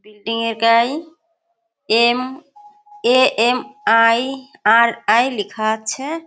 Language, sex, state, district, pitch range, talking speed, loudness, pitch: Bengali, female, West Bengal, Kolkata, 230-315 Hz, 55 wpm, -17 LUFS, 250 Hz